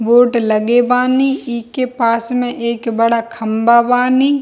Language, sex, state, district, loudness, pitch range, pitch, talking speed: Hindi, female, Bihar, Darbhanga, -14 LUFS, 230-250 Hz, 240 Hz, 150 wpm